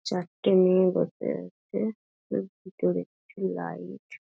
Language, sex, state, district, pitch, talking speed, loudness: Bengali, female, West Bengal, Dakshin Dinajpur, 165 Hz, 125 wpm, -28 LUFS